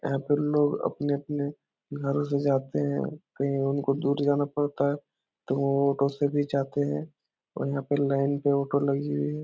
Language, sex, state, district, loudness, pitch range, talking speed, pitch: Hindi, male, Bihar, Jahanabad, -27 LUFS, 135-145 Hz, 185 wpm, 140 Hz